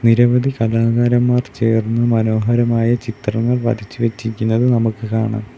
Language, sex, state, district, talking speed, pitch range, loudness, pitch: Malayalam, male, Kerala, Kollam, 95 wpm, 110-120 Hz, -17 LUFS, 115 Hz